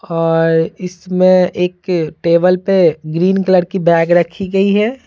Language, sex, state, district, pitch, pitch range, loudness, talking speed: Hindi, female, Bihar, Patna, 180 Hz, 170-190 Hz, -13 LUFS, 140 wpm